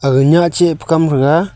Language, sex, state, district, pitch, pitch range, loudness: Wancho, male, Arunachal Pradesh, Longding, 160 Hz, 140-170 Hz, -12 LUFS